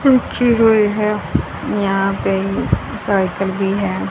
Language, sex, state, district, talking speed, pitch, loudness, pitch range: Hindi, female, Haryana, Charkhi Dadri, 100 wpm, 195 Hz, -17 LUFS, 195-215 Hz